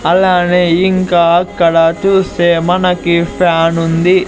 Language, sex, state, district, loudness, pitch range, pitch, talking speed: Telugu, male, Andhra Pradesh, Sri Satya Sai, -11 LUFS, 170-185 Hz, 175 Hz, 100 wpm